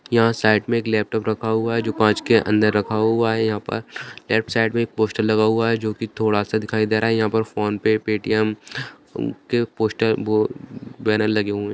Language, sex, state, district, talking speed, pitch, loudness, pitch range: Hindi, male, Bihar, Jamui, 225 wpm, 110 Hz, -20 LUFS, 110-115 Hz